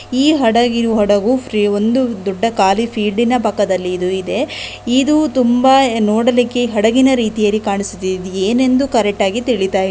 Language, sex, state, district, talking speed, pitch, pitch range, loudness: Kannada, female, Karnataka, Belgaum, 145 wpm, 225 Hz, 205-250 Hz, -15 LUFS